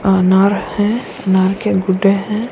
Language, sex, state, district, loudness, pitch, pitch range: Hindi, female, Bihar, Kishanganj, -15 LUFS, 195 Hz, 190-210 Hz